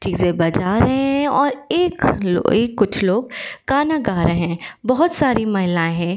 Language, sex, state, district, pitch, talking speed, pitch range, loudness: Hindi, female, Uttar Pradesh, Varanasi, 220 Hz, 165 wpm, 180-275 Hz, -18 LUFS